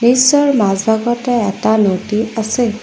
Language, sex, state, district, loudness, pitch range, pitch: Assamese, female, Assam, Kamrup Metropolitan, -14 LUFS, 210-245 Hz, 220 Hz